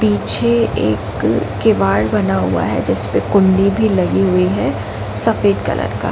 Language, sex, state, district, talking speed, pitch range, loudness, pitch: Hindi, female, Uttar Pradesh, Jalaun, 165 wpm, 100-110 Hz, -15 LUFS, 105 Hz